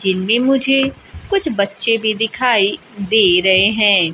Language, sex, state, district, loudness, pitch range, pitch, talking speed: Hindi, female, Bihar, Kaimur, -14 LUFS, 195-250 Hz, 215 Hz, 130 wpm